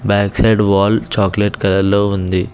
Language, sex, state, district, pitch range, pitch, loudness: Telugu, male, Telangana, Hyderabad, 95-105 Hz, 100 Hz, -14 LUFS